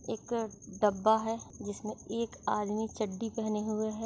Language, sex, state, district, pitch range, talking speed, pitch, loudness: Hindi, female, Chhattisgarh, Sarguja, 210-225 Hz, 145 wpm, 215 Hz, -33 LUFS